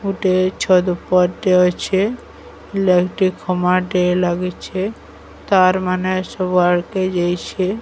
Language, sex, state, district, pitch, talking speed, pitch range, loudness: Odia, female, Odisha, Sambalpur, 185 Hz, 90 wpm, 180-190 Hz, -17 LUFS